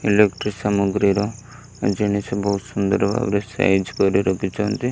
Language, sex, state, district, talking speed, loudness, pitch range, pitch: Odia, male, Odisha, Malkangiri, 110 wpm, -20 LUFS, 100-105 Hz, 100 Hz